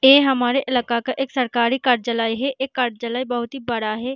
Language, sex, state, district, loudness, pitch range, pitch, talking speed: Hindi, female, Maharashtra, Chandrapur, -20 LUFS, 235-265 Hz, 250 Hz, 175 wpm